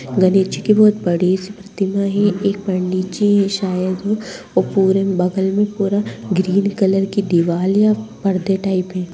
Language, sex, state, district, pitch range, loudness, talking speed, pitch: Hindi, female, Bihar, Madhepura, 185-205 Hz, -17 LUFS, 170 wpm, 195 Hz